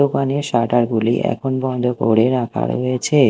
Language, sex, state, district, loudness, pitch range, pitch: Bengali, male, Odisha, Malkangiri, -18 LUFS, 120-135 Hz, 125 Hz